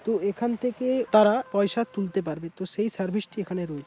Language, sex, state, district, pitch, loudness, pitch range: Bengali, male, West Bengal, Paschim Medinipur, 205 Hz, -26 LUFS, 190-230 Hz